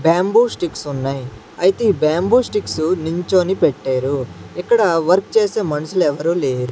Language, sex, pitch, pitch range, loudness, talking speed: Telugu, male, 170 Hz, 140-195 Hz, -17 LUFS, 135 wpm